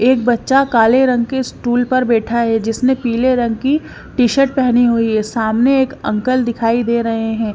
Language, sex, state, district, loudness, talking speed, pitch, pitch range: Hindi, female, Haryana, Rohtak, -15 LUFS, 200 wpm, 240 Hz, 230-255 Hz